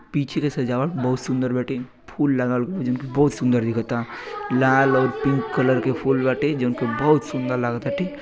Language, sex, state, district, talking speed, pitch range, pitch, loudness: Bhojpuri, male, Uttar Pradesh, Gorakhpur, 190 wpm, 125-140 Hz, 130 Hz, -22 LUFS